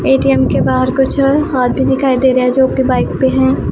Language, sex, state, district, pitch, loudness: Hindi, female, Punjab, Pathankot, 250 Hz, -13 LUFS